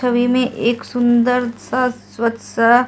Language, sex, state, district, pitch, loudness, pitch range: Hindi, female, Delhi, New Delhi, 245 Hz, -17 LUFS, 235-250 Hz